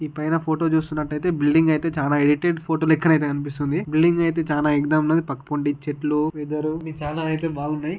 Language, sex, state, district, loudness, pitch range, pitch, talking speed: Telugu, male, Telangana, Karimnagar, -22 LUFS, 150-160 Hz, 155 Hz, 190 wpm